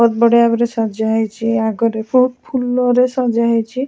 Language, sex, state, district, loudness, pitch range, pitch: Odia, female, Odisha, Khordha, -15 LUFS, 225-250 Hz, 235 Hz